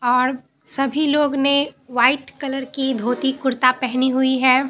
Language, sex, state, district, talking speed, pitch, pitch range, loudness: Hindi, female, Bihar, Katihar, 155 wpm, 265 Hz, 255-275 Hz, -19 LUFS